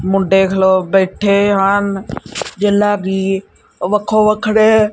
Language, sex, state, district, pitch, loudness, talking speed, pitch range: Punjabi, male, Punjab, Kapurthala, 200 Hz, -14 LUFS, 110 wpm, 190-210 Hz